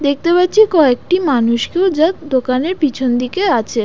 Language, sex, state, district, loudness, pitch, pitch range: Bengali, female, West Bengal, Dakshin Dinajpur, -14 LUFS, 290 Hz, 250-360 Hz